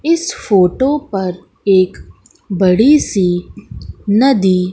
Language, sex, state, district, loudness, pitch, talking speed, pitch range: Hindi, female, Madhya Pradesh, Katni, -14 LUFS, 195 Hz, 90 wpm, 185-270 Hz